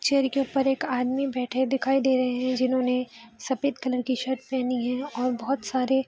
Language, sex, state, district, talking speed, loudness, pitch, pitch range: Hindi, female, Bihar, Araria, 205 wpm, -26 LUFS, 260 Hz, 250-270 Hz